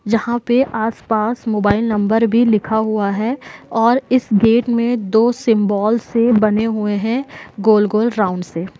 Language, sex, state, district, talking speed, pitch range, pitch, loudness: Hindi, female, Jharkhand, Sahebganj, 150 wpm, 210-235 Hz, 220 Hz, -16 LUFS